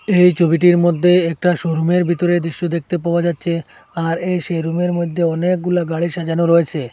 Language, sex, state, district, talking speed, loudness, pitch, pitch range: Bengali, male, Assam, Hailakandi, 180 wpm, -17 LUFS, 170 Hz, 165-175 Hz